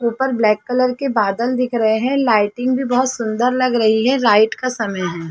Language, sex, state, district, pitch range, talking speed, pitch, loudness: Hindi, female, Chhattisgarh, Balrampur, 220-255 Hz, 215 wpm, 240 Hz, -17 LUFS